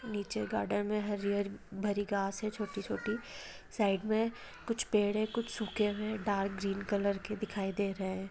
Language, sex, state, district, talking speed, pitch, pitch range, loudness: Hindi, female, Chhattisgarh, Rajnandgaon, 190 wpm, 205 Hz, 200-215 Hz, -35 LUFS